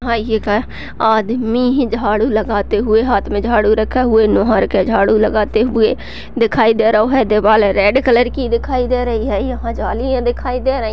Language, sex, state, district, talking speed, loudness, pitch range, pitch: Hindi, female, Uttar Pradesh, Jyotiba Phule Nagar, 195 wpm, -15 LUFS, 215-245 Hz, 225 Hz